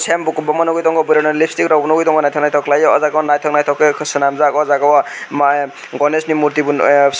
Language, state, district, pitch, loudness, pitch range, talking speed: Kokborok, Tripura, West Tripura, 150 Hz, -14 LUFS, 145-155 Hz, 250 wpm